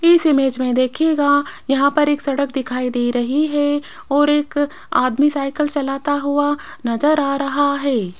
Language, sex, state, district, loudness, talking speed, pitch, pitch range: Hindi, female, Rajasthan, Jaipur, -18 LUFS, 160 wpm, 285 Hz, 270-295 Hz